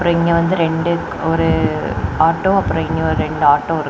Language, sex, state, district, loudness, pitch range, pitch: Tamil, female, Tamil Nadu, Kanyakumari, -16 LUFS, 150-170 Hz, 165 Hz